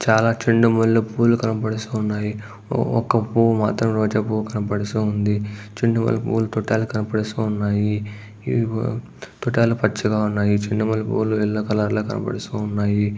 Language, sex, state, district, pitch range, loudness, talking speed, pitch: Telugu, male, Andhra Pradesh, Guntur, 105-115 Hz, -21 LUFS, 125 wpm, 110 Hz